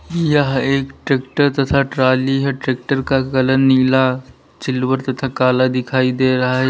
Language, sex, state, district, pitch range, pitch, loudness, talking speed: Hindi, male, Uttar Pradesh, Lalitpur, 130-135 Hz, 130 Hz, -16 LUFS, 150 wpm